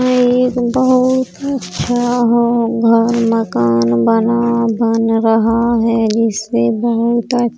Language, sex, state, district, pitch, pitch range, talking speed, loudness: Hindi, female, Uttar Pradesh, Hamirpur, 235 Hz, 225-245 Hz, 110 wpm, -14 LUFS